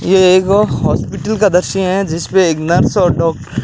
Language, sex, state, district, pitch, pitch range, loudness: Hindi, male, Rajasthan, Jaisalmer, 185 Hz, 165-195 Hz, -13 LUFS